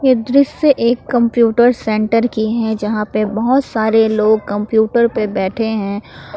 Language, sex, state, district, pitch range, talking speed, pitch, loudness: Hindi, female, Jharkhand, Palamu, 215-240 Hz, 140 wpm, 225 Hz, -15 LUFS